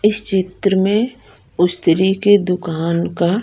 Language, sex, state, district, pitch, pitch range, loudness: Hindi, female, Punjab, Kapurthala, 190 Hz, 175-205 Hz, -16 LUFS